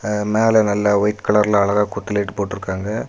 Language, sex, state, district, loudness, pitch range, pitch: Tamil, male, Tamil Nadu, Kanyakumari, -18 LUFS, 100-105 Hz, 105 Hz